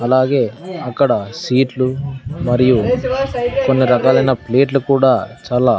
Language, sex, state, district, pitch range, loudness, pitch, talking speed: Telugu, male, Andhra Pradesh, Sri Satya Sai, 125-140 Hz, -16 LUFS, 130 Hz, 95 wpm